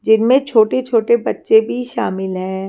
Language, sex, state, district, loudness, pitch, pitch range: Hindi, female, Himachal Pradesh, Shimla, -16 LUFS, 230 Hz, 195-250 Hz